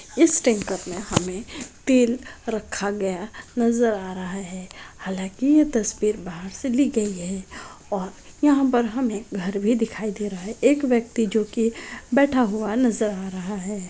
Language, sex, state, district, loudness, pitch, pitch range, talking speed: Hindi, female, Bihar, Saran, -23 LUFS, 215 Hz, 195-245 Hz, 165 wpm